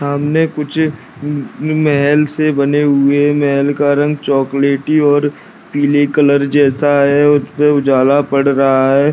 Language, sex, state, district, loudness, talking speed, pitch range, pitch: Hindi, male, Rajasthan, Churu, -13 LUFS, 150 wpm, 140-150 Hz, 145 Hz